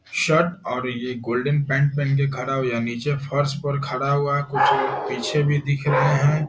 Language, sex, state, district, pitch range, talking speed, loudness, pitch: Hindi, male, Bihar, Jahanabad, 130-145 Hz, 205 wpm, -22 LUFS, 140 Hz